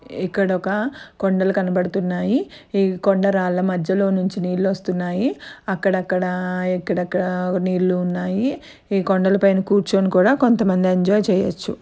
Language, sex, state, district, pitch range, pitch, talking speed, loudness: Telugu, female, Andhra Pradesh, Anantapur, 185-200 Hz, 190 Hz, 110 wpm, -20 LUFS